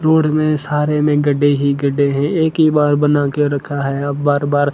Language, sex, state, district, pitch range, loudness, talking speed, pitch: Hindi, male, Himachal Pradesh, Shimla, 145-150 Hz, -15 LUFS, 230 wpm, 145 Hz